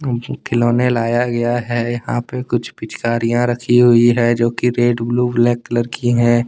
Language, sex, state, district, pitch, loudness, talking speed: Hindi, male, Jharkhand, Deoghar, 120 Hz, -16 LUFS, 175 wpm